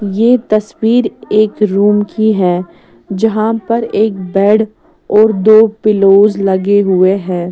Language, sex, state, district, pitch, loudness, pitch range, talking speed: Hindi, female, Odisha, Sambalpur, 210 Hz, -11 LUFS, 195-220 Hz, 130 wpm